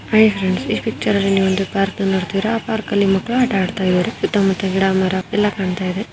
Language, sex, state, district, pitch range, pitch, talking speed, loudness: Kannada, female, Karnataka, Bijapur, 190-210 Hz, 195 Hz, 205 wpm, -18 LUFS